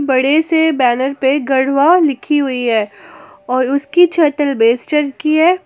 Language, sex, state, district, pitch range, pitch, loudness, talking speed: Hindi, female, Jharkhand, Garhwa, 260-310 Hz, 280 Hz, -14 LUFS, 150 wpm